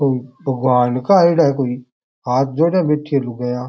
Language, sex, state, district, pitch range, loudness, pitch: Rajasthani, male, Rajasthan, Churu, 125-150 Hz, -17 LUFS, 130 Hz